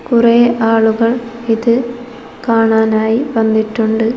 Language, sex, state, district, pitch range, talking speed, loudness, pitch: Malayalam, female, Kerala, Kozhikode, 225-240 Hz, 70 wpm, -13 LUFS, 230 Hz